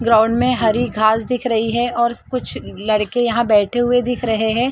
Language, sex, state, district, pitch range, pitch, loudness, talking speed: Hindi, female, Chhattisgarh, Rajnandgaon, 220-245 Hz, 235 Hz, -17 LUFS, 205 wpm